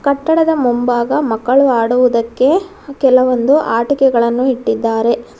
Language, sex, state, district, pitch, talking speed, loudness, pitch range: Kannada, female, Karnataka, Bangalore, 255 Hz, 80 wpm, -13 LUFS, 235-280 Hz